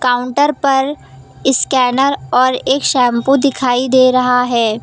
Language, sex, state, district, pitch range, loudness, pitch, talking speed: Hindi, female, Uttar Pradesh, Lucknow, 245-270 Hz, -13 LUFS, 255 Hz, 125 wpm